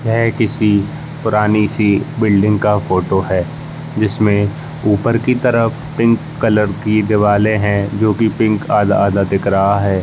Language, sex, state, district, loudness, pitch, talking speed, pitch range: Hindi, male, Uttar Pradesh, Jalaun, -15 LUFS, 105 Hz, 145 wpm, 100-115 Hz